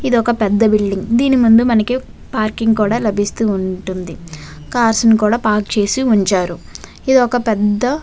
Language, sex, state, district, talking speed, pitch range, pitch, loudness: Telugu, female, Andhra Pradesh, Visakhapatnam, 140 wpm, 205-240 Hz, 220 Hz, -15 LUFS